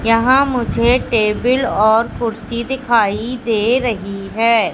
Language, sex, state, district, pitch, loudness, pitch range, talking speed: Hindi, female, Madhya Pradesh, Katni, 230 Hz, -16 LUFS, 220-245 Hz, 115 wpm